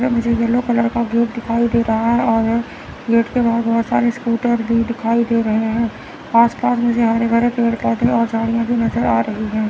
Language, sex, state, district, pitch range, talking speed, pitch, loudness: Hindi, male, Chandigarh, Chandigarh, 230-235 Hz, 215 wpm, 230 Hz, -17 LUFS